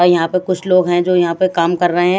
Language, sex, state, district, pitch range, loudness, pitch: Hindi, female, Haryana, Rohtak, 175-185 Hz, -15 LUFS, 175 Hz